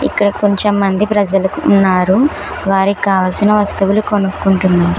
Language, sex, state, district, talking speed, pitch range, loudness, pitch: Telugu, female, Telangana, Hyderabad, 110 wpm, 190-205 Hz, -13 LUFS, 195 Hz